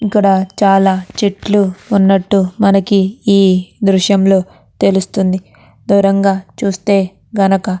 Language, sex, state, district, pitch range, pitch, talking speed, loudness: Telugu, female, Andhra Pradesh, Krishna, 190-200 Hz, 195 Hz, 100 wpm, -13 LUFS